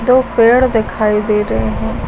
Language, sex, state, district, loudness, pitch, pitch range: Hindi, female, Uttar Pradesh, Lucknow, -13 LUFS, 215 Hz, 210-245 Hz